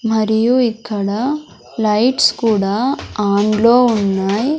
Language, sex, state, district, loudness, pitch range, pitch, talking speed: Telugu, female, Andhra Pradesh, Sri Satya Sai, -15 LUFS, 210-245 Hz, 220 Hz, 90 wpm